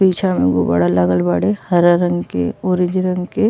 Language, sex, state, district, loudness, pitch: Bhojpuri, female, Uttar Pradesh, Ghazipur, -16 LUFS, 175 Hz